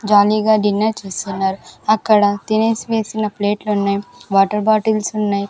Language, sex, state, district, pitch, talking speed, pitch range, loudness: Telugu, female, Andhra Pradesh, Sri Satya Sai, 210 Hz, 120 wpm, 200-215 Hz, -17 LUFS